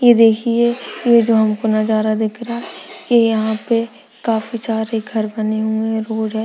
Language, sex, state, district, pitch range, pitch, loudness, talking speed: Hindi, female, Uttarakhand, Uttarkashi, 220-235 Hz, 225 Hz, -17 LUFS, 195 wpm